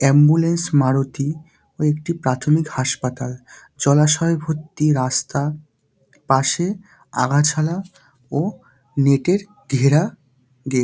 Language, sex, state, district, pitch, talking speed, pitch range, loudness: Bengali, male, West Bengal, Dakshin Dinajpur, 145 Hz, 90 wpm, 135-160 Hz, -19 LUFS